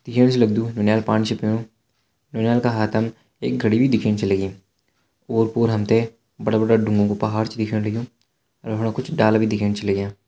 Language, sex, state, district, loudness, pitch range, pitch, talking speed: Hindi, male, Uttarakhand, Uttarkashi, -21 LUFS, 105-115 Hz, 110 Hz, 210 wpm